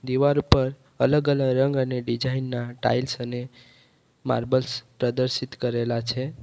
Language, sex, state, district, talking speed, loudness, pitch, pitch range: Gujarati, male, Gujarat, Valsad, 140 wpm, -24 LUFS, 130 Hz, 125-130 Hz